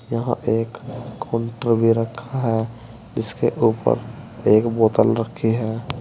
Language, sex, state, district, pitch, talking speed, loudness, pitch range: Hindi, male, Uttar Pradesh, Saharanpur, 115 Hz, 120 wpm, -21 LUFS, 115-120 Hz